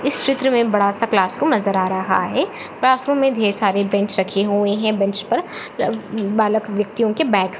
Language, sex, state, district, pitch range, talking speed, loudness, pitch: Hindi, female, Chhattisgarh, Jashpur, 200-235 Hz, 205 wpm, -18 LUFS, 210 Hz